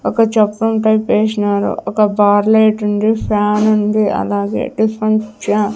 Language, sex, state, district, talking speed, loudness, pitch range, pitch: Telugu, female, Andhra Pradesh, Sri Satya Sai, 135 wpm, -14 LUFS, 210-220 Hz, 215 Hz